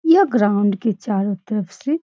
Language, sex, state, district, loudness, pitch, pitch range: Hindi, female, Bihar, Araria, -19 LUFS, 210 Hz, 200-280 Hz